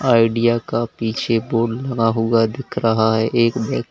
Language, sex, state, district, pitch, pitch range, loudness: Hindi, male, Uttar Pradesh, Lalitpur, 115 Hz, 115-120 Hz, -18 LUFS